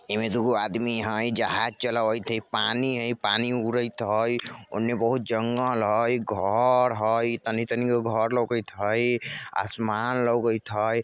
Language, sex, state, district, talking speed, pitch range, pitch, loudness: Maithili, male, Bihar, Vaishali, 145 wpm, 110-120 Hz, 115 Hz, -24 LUFS